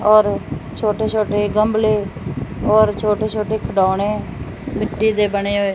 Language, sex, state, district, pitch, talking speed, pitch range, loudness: Punjabi, male, Punjab, Fazilka, 210 Hz, 125 wpm, 200-215 Hz, -18 LUFS